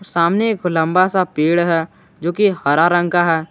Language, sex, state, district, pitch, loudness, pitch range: Hindi, male, Jharkhand, Garhwa, 175 Hz, -16 LUFS, 165-185 Hz